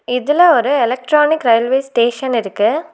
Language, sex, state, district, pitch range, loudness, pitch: Tamil, female, Tamil Nadu, Nilgiris, 235-300 Hz, -14 LUFS, 260 Hz